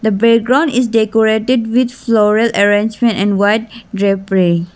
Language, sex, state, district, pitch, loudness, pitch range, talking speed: English, female, Arunachal Pradesh, Lower Dibang Valley, 220 Hz, -13 LUFS, 205-230 Hz, 125 wpm